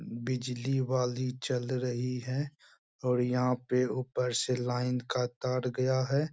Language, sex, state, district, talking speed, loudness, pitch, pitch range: Hindi, male, Bihar, Bhagalpur, 140 wpm, -32 LUFS, 125 Hz, 125-130 Hz